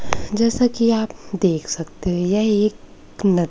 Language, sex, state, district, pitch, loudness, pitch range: Hindi, male, Maharashtra, Gondia, 205 Hz, -20 LUFS, 180-220 Hz